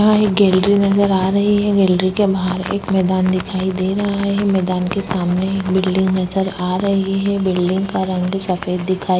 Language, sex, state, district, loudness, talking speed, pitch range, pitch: Hindi, female, Uttar Pradesh, Budaun, -17 LUFS, 200 wpm, 185-200 Hz, 190 Hz